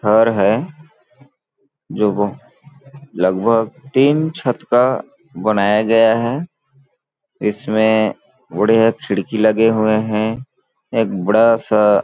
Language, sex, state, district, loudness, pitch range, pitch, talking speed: Hindi, male, Chhattisgarh, Balrampur, -16 LUFS, 105-135 Hz, 115 Hz, 105 wpm